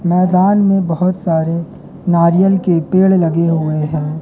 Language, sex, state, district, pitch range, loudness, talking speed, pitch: Hindi, male, Madhya Pradesh, Katni, 165-185 Hz, -14 LUFS, 140 wpm, 175 Hz